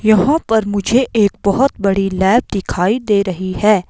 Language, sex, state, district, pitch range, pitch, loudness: Hindi, female, Himachal Pradesh, Shimla, 195-225 Hz, 205 Hz, -15 LUFS